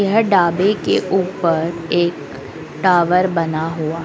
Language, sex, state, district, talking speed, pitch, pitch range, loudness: Hindi, female, Madhya Pradesh, Dhar, 120 wpm, 175 Hz, 165-190 Hz, -17 LUFS